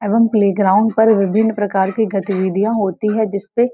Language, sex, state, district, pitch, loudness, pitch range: Hindi, female, Uttar Pradesh, Varanasi, 210 Hz, -16 LUFS, 195-220 Hz